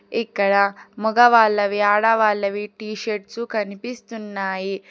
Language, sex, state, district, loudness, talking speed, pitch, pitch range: Telugu, female, Telangana, Hyderabad, -20 LUFS, 75 wpm, 210 Hz, 200-225 Hz